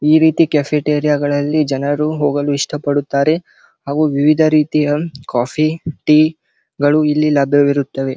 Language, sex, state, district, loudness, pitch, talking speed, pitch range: Kannada, male, Karnataka, Belgaum, -15 LUFS, 150 Hz, 125 wpm, 145-155 Hz